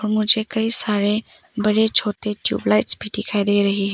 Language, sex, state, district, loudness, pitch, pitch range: Hindi, female, Arunachal Pradesh, Papum Pare, -19 LUFS, 210 Hz, 205-215 Hz